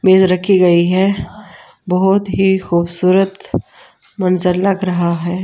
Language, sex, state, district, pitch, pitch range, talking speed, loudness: Hindi, female, Delhi, New Delhi, 185 Hz, 180-190 Hz, 120 wpm, -14 LUFS